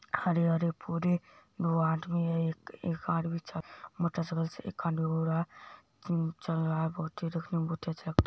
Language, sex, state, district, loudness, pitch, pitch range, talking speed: Hindi, female, Bihar, Jamui, -33 LUFS, 165 Hz, 160-170 Hz, 115 wpm